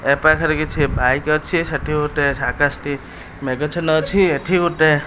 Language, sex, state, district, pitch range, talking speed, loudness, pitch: Odia, male, Odisha, Khordha, 140-155 Hz, 165 wpm, -18 LUFS, 150 Hz